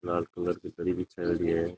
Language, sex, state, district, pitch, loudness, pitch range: Rajasthani, male, Rajasthan, Nagaur, 85 Hz, -31 LUFS, 85-90 Hz